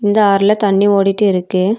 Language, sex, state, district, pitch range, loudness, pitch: Tamil, female, Tamil Nadu, Nilgiris, 195-210 Hz, -13 LUFS, 200 Hz